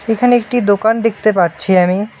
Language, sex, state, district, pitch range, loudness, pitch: Bengali, male, West Bengal, Alipurduar, 195-230 Hz, -13 LUFS, 215 Hz